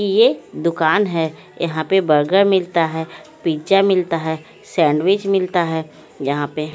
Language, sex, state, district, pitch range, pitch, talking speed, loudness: Hindi, female, Haryana, Charkhi Dadri, 155-190 Hz, 165 Hz, 150 wpm, -18 LUFS